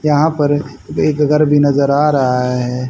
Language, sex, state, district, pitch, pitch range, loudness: Hindi, male, Haryana, Rohtak, 145 Hz, 130-150 Hz, -14 LUFS